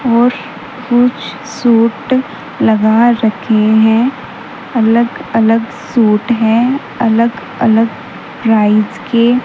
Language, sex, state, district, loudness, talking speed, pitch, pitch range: Hindi, female, Haryana, Rohtak, -12 LUFS, 90 wpm, 230 Hz, 220-245 Hz